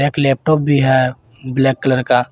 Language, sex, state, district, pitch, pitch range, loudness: Hindi, male, Jharkhand, Garhwa, 130 Hz, 130-140 Hz, -15 LUFS